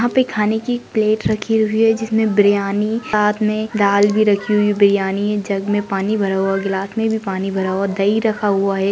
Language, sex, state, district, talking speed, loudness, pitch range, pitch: Hindi, female, Maharashtra, Dhule, 215 wpm, -17 LUFS, 200-220 Hz, 210 Hz